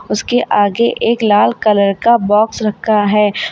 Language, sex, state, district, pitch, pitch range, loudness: Hindi, female, Uttar Pradesh, Lalitpur, 215 Hz, 205-230 Hz, -13 LUFS